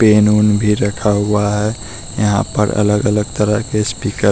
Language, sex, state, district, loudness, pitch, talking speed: Hindi, male, Bihar, West Champaran, -15 LUFS, 105 Hz, 165 wpm